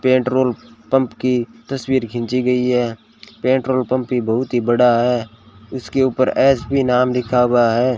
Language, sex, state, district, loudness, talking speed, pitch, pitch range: Hindi, male, Rajasthan, Bikaner, -17 LUFS, 160 wpm, 125 Hz, 120-130 Hz